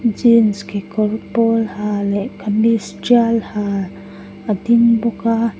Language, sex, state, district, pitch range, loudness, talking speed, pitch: Mizo, female, Mizoram, Aizawl, 200-230 Hz, -17 LUFS, 130 wpm, 220 Hz